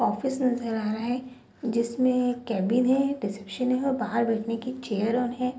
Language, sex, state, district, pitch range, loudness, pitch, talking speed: Hindi, female, Bihar, Sitamarhi, 225-255 Hz, -27 LUFS, 245 Hz, 180 wpm